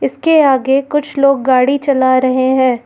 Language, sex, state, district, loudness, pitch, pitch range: Hindi, female, Uttar Pradesh, Lucknow, -12 LUFS, 270 Hz, 260-280 Hz